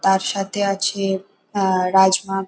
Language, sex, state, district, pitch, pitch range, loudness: Bengali, female, West Bengal, North 24 Parganas, 195 Hz, 190-195 Hz, -19 LUFS